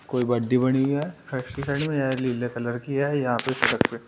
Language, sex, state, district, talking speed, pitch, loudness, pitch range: Hindi, male, Uttar Pradesh, Shamli, 220 wpm, 130 Hz, -25 LUFS, 120-140 Hz